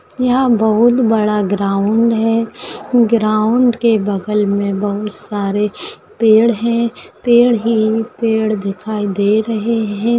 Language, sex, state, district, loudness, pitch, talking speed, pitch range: Hindi, female, Maharashtra, Pune, -15 LUFS, 220 Hz, 120 wpm, 210-230 Hz